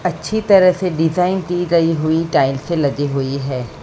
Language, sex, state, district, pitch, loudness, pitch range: Hindi, female, Maharashtra, Mumbai Suburban, 165 Hz, -17 LUFS, 140-180 Hz